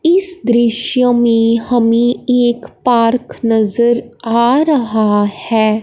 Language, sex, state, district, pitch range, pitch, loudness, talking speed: Hindi, male, Punjab, Fazilka, 225-245 Hz, 235 Hz, -13 LUFS, 105 wpm